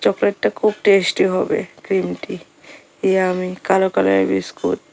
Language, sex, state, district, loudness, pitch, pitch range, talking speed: Bengali, female, Tripura, Unakoti, -18 LUFS, 190 Hz, 160-195 Hz, 120 wpm